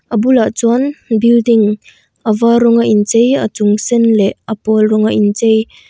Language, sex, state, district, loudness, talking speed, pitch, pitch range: Mizo, female, Mizoram, Aizawl, -12 LUFS, 195 wpm, 225 Hz, 215-235 Hz